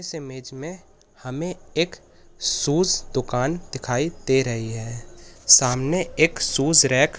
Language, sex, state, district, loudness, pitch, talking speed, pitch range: Hindi, male, Madhya Pradesh, Katni, -21 LUFS, 135 Hz, 135 wpm, 125-165 Hz